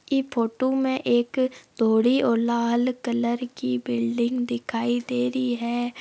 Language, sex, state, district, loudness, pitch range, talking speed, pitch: Marwari, female, Rajasthan, Nagaur, -24 LUFS, 235-250 Hz, 150 wpm, 240 Hz